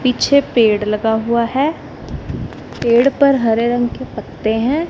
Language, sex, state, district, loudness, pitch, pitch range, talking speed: Hindi, female, Punjab, Fazilka, -16 LUFS, 240 Hz, 225-275 Hz, 145 wpm